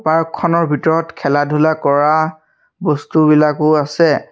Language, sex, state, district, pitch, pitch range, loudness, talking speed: Assamese, male, Assam, Sonitpur, 155 Hz, 150-165 Hz, -14 LUFS, 95 wpm